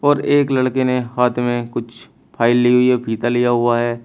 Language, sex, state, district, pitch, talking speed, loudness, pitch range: Hindi, male, Uttar Pradesh, Shamli, 120 Hz, 220 wpm, -17 LUFS, 120-125 Hz